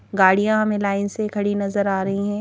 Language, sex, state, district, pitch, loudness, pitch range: Hindi, female, Madhya Pradesh, Bhopal, 200 Hz, -20 LUFS, 195-210 Hz